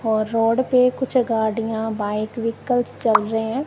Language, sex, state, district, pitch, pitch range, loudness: Hindi, male, Punjab, Kapurthala, 225 Hz, 220-245 Hz, -21 LUFS